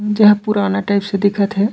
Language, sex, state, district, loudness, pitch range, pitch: Chhattisgarhi, male, Chhattisgarh, Raigarh, -15 LUFS, 200-210 Hz, 205 Hz